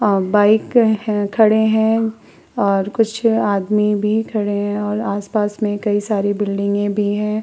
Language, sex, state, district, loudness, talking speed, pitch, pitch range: Hindi, female, Uttar Pradesh, Hamirpur, -17 LUFS, 155 wpm, 210 Hz, 205-220 Hz